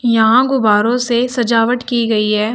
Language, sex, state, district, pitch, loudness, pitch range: Hindi, female, Uttar Pradesh, Shamli, 235 Hz, -14 LUFS, 220-245 Hz